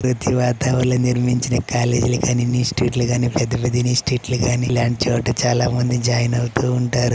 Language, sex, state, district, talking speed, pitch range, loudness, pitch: Telugu, male, Andhra Pradesh, Chittoor, 170 wpm, 120-125 Hz, -19 LUFS, 125 Hz